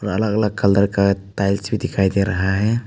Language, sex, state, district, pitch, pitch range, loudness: Hindi, male, Arunachal Pradesh, Papum Pare, 100 Hz, 100-110 Hz, -19 LUFS